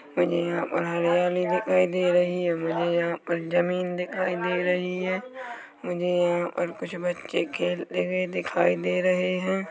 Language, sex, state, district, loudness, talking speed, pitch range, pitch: Hindi, male, Chhattisgarh, Korba, -26 LUFS, 160 wpm, 170-180 Hz, 175 Hz